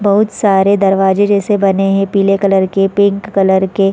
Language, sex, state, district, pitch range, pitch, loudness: Hindi, female, Chhattisgarh, Sarguja, 195-200 Hz, 195 Hz, -12 LUFS